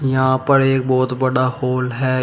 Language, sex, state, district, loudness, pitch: Hindi, male, Uttar Pradesh, Shamli, -17 LUFS, 130 Hz